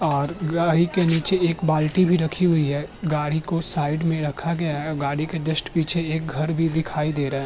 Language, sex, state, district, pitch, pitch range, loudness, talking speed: Hindi, male, Uttar Pradesh, Muzaffarnagar, 160 Hz, 150-170 Hz, -22 LUFS, 235 wpm